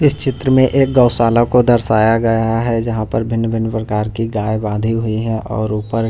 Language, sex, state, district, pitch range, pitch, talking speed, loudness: Hindi, male, Punjab, Pathankot, 110-120 Hz, 115 Hz, 195 wpm, -15 LUFS